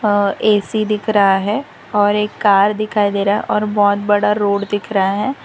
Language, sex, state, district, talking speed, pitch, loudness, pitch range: Hindi, female, Gujarat, Valsad, 210 wpm, 205 Hz, -16 LUFS, 200-210 Hz